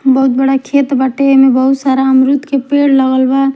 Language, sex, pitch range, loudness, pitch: Bhojpuri, female, 265-275 Hz, -11 LUFS, 270 Hz